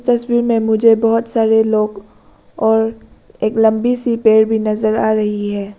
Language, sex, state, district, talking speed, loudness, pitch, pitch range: Hindi, female, Arunachal Pradesh, Lower Dibang Valley, 165 wpm, -15 LUFS, 220 Hz, 215-230 Hz